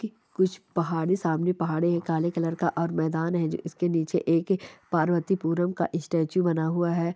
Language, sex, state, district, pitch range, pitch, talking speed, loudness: Hindi, female, Chhattisgarh, Sukma, 165-175 Hz, 170 Hz, 185 wpm, -26 LUFS